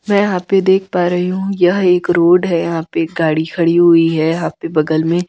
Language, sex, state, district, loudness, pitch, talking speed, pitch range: Hindi, female, Chhattisgarh, Raipur, -14 LUFS, 175 Hz, 270 wpm, 165-185 Hz